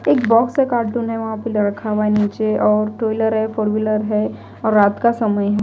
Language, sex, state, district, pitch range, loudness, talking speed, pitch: Hindi, female, Delhi, New Delhi, 210-225 Hz, -18 LUFS, 235 wpm, 215 Hz